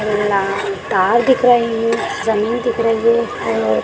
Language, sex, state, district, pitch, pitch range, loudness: Hindi, female, Bihar, Jamui, 225 Hz, 205-235 Hz, -16 LUFS